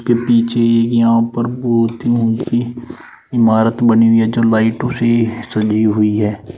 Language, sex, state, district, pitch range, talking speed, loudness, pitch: Hindi, male, Uttar Pradesh, Shamli, 115-120 Hz, 145 wpm, -14 LUFS, 115 Hz